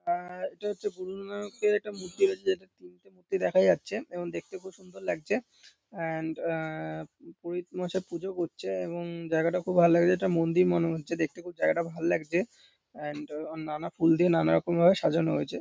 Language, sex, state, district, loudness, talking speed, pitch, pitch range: Bengali, male, West Bengal, North 24 Parganas, -29 LUFS, 175 wpm, 175 Hz, 165-190 Hz